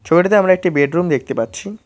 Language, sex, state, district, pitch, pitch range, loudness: Bengali, male, West Bengal, Cooch Behar, 175 Hz, 145-185 Hz, -16 LUFS